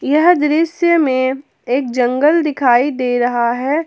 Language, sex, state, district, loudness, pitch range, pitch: Hindi, female, Jharkhand, Palamu, -15 LUFS, 250-310 Hz, 275 Hz